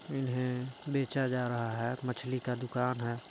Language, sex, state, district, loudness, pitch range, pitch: Hindi, male, Chhattisgarh, Balrampur, -34 LUFS, 125-130 Hz, 125 Hz